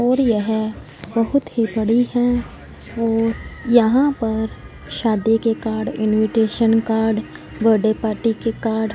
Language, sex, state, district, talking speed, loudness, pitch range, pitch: Hindi, female, Punjab, Fazilka, 125 wpm, -19 LUFS, 220-235 Hz, 225 Hz